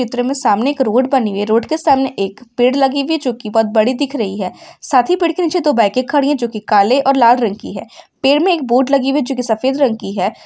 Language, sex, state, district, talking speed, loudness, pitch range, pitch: Hindi, female, Uttar Pradesh, Ghazipur, 280 wpm, -15 LUFS, 225-285 Hz, 255 Hz